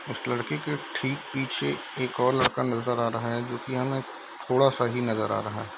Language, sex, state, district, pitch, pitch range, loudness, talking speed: Hindi, male, Bihar, East Champaran, 120 Hz, 115-130 Hz, -27 LUFS, 230 wpm